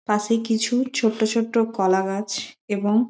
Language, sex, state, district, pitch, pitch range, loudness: Bengali, female, West Bengal, Malda, 225 Hz, 205-230 Hz, -22 LUFS